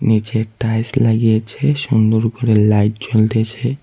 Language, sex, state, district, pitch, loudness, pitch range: Bengali, male, West Bengal, Cooch Behar, 110 Hz, -16 LUFS, 110-120 Hz